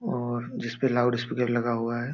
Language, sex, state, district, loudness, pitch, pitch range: Hindi, male, Jharkhand, Jamtara, -27 LUFS, 120 Hz, 120-125 Hz